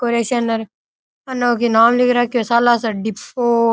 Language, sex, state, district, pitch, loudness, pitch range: Rajasthani, male, Rajasthan, Nagaur, 235 Hz, -16 LUFS, 230-245 Hz